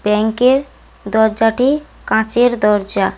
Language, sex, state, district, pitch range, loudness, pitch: Bengali, female, West Bengal, Paschim Medinipur, 210-250 Hz, -14 LUFS, 220 Hz